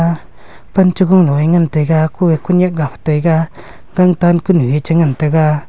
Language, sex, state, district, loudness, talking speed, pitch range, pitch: Wancho, male, Arunachal Pradesh, Longding, -13 LUFS, 190 wpm, 155-180 Hz, 165 Hz